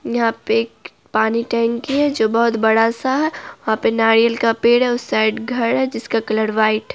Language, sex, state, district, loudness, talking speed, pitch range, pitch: Hindi, female, Bihar, Araria, -17 LUFS, 205 wpm, 225-240 Hz, 230 Hz